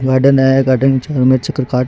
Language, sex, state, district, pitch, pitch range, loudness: Rajasthani, male, Rajasthan, Churu, 130 Hz, 130-135 Hz, -13 LUFS